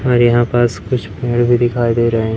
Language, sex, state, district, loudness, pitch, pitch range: Hindi, male, Madhya Pradesh, Umaria, -15 LUFS, 120 Hz, 115-120 Hz